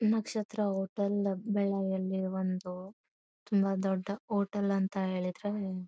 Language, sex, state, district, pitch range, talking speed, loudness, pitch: Kannada, female, Karnataka, Bellary, 190-205 Hz, 90 wpm, -33 LUFS, 195 Hz